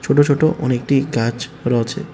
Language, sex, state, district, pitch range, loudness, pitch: Bengali, male, Tripura, West Tripura, 120-145 Hz, -18 LUFS, 135 Hz